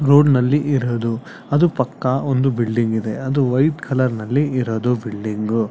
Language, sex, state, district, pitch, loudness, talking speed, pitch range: Kannada, male, Karnataka, Chamarajanagar, 130 Hz, -19 LUFS, 160 wpm, 115-140 Hz